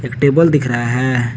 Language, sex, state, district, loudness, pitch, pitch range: Hindi, male, Jharkhand, Garhwa, -14 LUFS, 130 Hz, 120-140 Hz